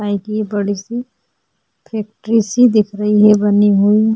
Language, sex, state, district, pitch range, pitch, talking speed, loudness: Hindi, female, Goa, North and South Goa, 205-220 Hz, 210 Hz, 200 wpm, -14 LUFS